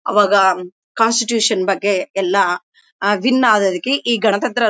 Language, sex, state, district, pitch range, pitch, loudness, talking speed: Kannada, female, Karnataka, Bellary, 195-235 Hz, 205 Hz, -16 LUFS, 100 wpm